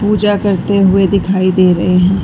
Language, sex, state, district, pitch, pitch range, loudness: Hindi, female, Bihar, Darbhanga, 190 Hz, 185-200 Hz, -12 LUFS